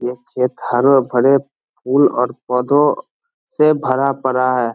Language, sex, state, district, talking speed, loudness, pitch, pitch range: Hindi, male, Bihar, Samastipur, 125 wpm, -16 LUFS, 135 Hz, 125-145 Hz